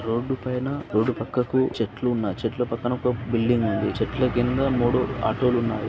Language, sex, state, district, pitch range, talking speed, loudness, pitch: Telugu, male, Andhra Pradesh, Srikakulam, 115-125 Hz, 175 wpm, -24 LUFS, 120 Hz